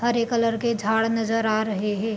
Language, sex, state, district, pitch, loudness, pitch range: Hindi, female, Bihar, Gopalganj, 225 Hz, -23 LUFS, 215-230 Hz